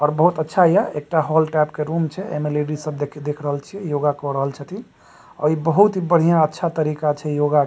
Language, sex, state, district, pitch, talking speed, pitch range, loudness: Maithili, male, Bihar, Supaul, 155 Hz, 240 wpm, 150-165 Hz, -20 LUFS